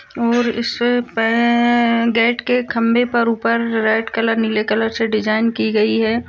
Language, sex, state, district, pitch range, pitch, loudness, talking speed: Hindi, female, Bihar, Purnia, 225-235 Hz, 230 Hz, -17 LUFS, 180 wpm